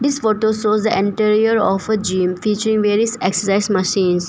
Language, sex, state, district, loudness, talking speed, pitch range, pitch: English, female, Arunachal Pradesh, Papum Pare, -17 LUFS, 155 wpm, 195-220 Hz, 210 Hz